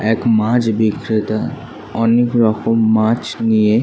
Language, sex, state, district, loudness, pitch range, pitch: Bengali, male, West Bengal, Kolkata, -16 LUFS, 110-115 Hz, 110 Hz